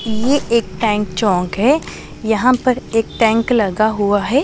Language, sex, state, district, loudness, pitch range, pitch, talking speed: Hindi, female, Punjab, Pathankot, -16 LUFS, 210-250 Hz, 225 Hz, 160 wpm